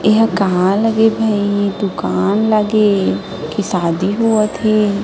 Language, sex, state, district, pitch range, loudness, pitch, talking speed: Chhattisgarhi, female, Chhattisgarh, Sarguja, 190-215 Hz, -15 LUFS, 205 Hz, 155 wpm